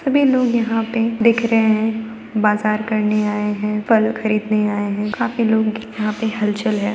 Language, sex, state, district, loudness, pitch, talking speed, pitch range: Hindi, female, Bihar, Gaya, -18 LUFS, 220 Hz, 180 wpm, 210-225 Hz